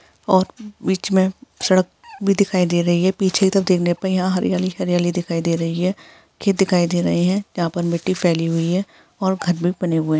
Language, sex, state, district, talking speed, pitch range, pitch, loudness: Hindi, female, Bihar, Jahanabad, 230 wpm, 175-190 Hz, 185 Hz, -19 LUFS